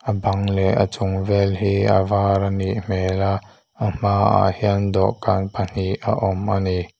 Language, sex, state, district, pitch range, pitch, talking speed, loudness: Mizo, male, Mizoram, Aizawl, 95-100 Hz, 100 Hz, 170 wpm, -20 LUFS